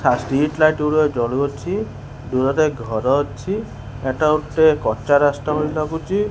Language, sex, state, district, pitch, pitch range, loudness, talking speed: Odia, male, Odisha, Khordha, 145 Hz, 125-155 Hz, -19 LUFS, 125 wpm